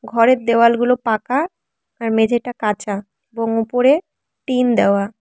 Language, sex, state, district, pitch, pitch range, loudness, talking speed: Bengali, female, West Bengal, Cooch Behar, 235 Hz, 220-250 Hz, -17 LUFS, 125 wpm